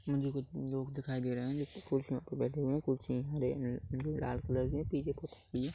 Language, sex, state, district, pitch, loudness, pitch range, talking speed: Hindi, male, Chhattisgarh, Kabirdham, 135 Hz, -37 LUFS, 130-145 Hz, 230 wpm